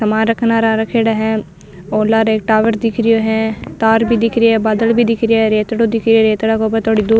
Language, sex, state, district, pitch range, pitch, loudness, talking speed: Marwari, female, Rajasthan, Nagaur, 220-230 Hz, 225 Hz, -14 LUFS, 215 wpm